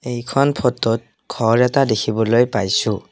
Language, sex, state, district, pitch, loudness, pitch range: Assamese, male, Assam, Kamrup Metropolitan, 115 Hz, -18 LUFS, 110-125 Hz